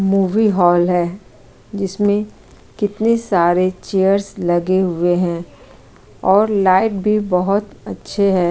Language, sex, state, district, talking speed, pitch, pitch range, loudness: Hindi, female, Chhattisgarh, Kabirdham, 115 wpm, 190 Hz, 175-205 Hz, -17 LUFS